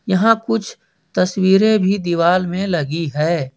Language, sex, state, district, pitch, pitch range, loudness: Hindi, male, Jharkhand, Ranchi, 185 Hz, 170-195 Hz, -17 LUFS